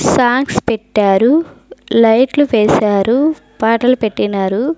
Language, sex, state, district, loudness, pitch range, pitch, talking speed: Telugu, female, Andhra Pradesh, Sri Satya Sai, -13 LUFS, 215-260 Hz, 230 Hz, 75 wpm